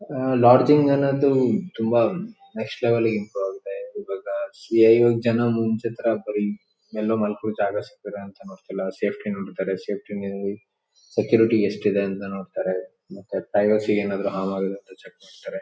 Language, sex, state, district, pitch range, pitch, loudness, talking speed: Kannada, male, Karnataka, Shimoga, 100-120 Hz, 110 Hz, -23 LUFS, 150 wpm